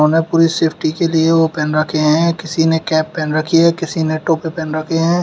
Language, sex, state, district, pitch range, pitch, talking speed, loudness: Hindi, male, Uttar Pradesh, Shamli, 155-165 Hz, 160 Hz, 240 wpm, -15 LUFS